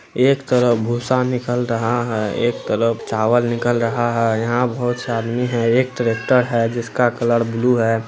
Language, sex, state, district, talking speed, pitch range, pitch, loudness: Hindi, male, Bihar, Araria, 170 wpm, 115-125 Hz, 120 Hz, -18 LUFS